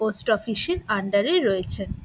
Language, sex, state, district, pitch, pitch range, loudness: Bengali, female, West Bengal, Dakshin Dinajpur, 220 Hz, 210-340 Hz, -23 LUFS